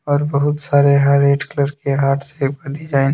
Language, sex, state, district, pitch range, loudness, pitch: Hindi, male, Jharkhand, Deoghar, 140-145 Hz, -16 LUFS, 140 Hz